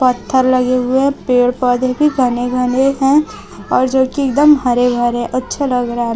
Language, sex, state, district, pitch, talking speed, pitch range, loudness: Hindi, female, Chhattisgarh, Raipur, 255 Hz, 175 wpm, 245-270 Hz, -14 LUFS